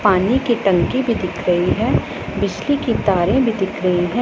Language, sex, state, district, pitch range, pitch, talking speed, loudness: Hindi, female, Punjab, Pathankot, 180-240 Hz, 200 Hz, 200 wpm, -18 LUFS